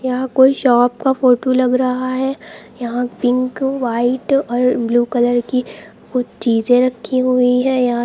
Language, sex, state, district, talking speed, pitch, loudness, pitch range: Hindi, female, Uttar Pradesh, Lucknow, 155 wpm, 250 Hz, -16 LUFS, 240-255 Hz